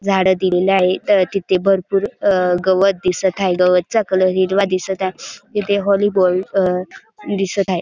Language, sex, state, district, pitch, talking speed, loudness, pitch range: Marathi, male, Maharashtra, Dhule, 190 Hz, 160 wpm, -17 LUFS, 185-200 Hz